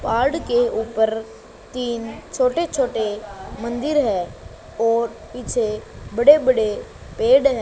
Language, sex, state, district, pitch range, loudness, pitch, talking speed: Hindi, male, Haryana, Charkhi Dadri, 220-275 Hz, -20 LUFS, 235 Hz, 110 wpm